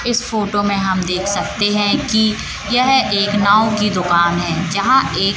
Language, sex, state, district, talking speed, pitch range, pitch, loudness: Hindi, female, Madhya Pradesh, Katni, 180 wpm, 190-220 Hz, 205 Hz, -15 LUFS